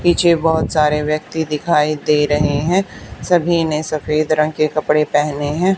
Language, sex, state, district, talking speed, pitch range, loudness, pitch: Hindi, female, Haryana, Charkhi Dadri, 165 wpm, 150-165 Hz, -16 LUFS, 155 Hz